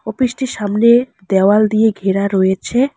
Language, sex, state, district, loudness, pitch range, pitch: Bengali, female, West Bengal, Alipurduar, -14 LUFS, 195-245 Hz, 215 Hz